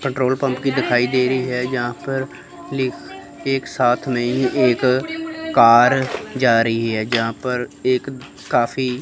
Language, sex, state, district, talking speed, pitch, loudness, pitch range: Hindi, female, Chandigarh, Chandigarh, 160 wpm, 125 Hz, -19 LUFS, 120-135 Hz